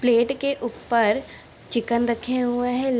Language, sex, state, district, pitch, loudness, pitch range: Hindi, female, Bihar, Begusarai, 245 Hz, -23 LUFS, 235-255 Hz